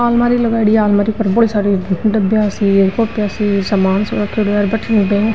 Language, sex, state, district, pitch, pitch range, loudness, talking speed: Marwari, female, Rajasthan, Nagaur, 210 Hz, 200-220 Hz, -14 LUFS, 190 wpm